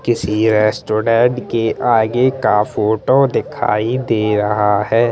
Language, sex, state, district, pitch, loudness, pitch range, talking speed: Hindi, male, Chandigarh, Chandigarh, 110 Hz, -15 LUFS, 105-120 Hz, 115 wpm